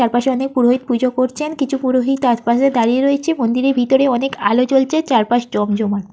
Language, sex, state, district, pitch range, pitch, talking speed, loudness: Bengali, female, West Bengal, Jhargram, 240-270 Hz, 255 Hz, 165 wpm, -16 LUFS